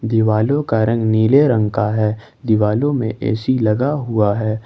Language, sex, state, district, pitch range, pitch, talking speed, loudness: Hindi, male, Jharkhand, Ranchi, 110-125 Hz, 110 Hz, 165 wpm, -17 LUFS